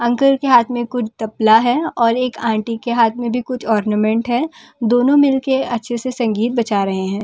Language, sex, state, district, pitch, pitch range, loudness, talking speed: Hindi, female, Delhi, New Delhi, 240 Hz, 225-250 Hz, -17 LUFS, 205 wpm